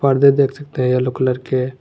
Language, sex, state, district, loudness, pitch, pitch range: Hindi, male, Jharkhand, Garhwa, -17 LUFS, 130 Hz, 125-140 Hz